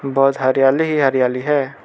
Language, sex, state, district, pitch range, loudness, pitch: Hindi, male, Arunachal Pradesh, Lower Dibang Valley, 130-140 Hz, -16 LUFS, 135 Hz